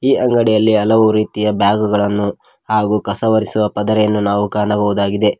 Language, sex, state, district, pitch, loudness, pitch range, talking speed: Kannada, male, Karnataka, Koppal, 105 Hz, -15 LUFS, 105-110 Hz, 110 wpm